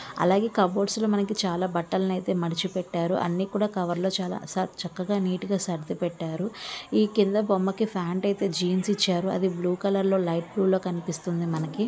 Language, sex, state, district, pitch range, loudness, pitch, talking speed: Telugu, female, Andhra Pradesh, Visakhapatnam, 175-200 Hz, -26 LUFS, 185 Hz, 170 wpm